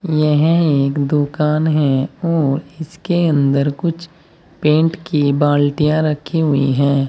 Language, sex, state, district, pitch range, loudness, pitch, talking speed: Hindi, male, Uttar Pradesh, Saharanpur, 140-165 Hz, -16 LUFS, 150 Hz, 120 wpm